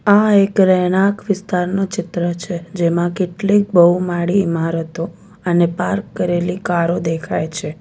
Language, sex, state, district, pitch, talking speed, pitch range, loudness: Gujarati, female, Gujarat, Valsad, 180 Hz, 125 wpm, 170-195 Hz, -17 LUFS